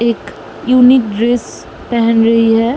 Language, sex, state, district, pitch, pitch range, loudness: Hindi, female, Uttar Pradesh, Muzaffarnagar, 235 Hz, 230-245 Hz, -12 LUFS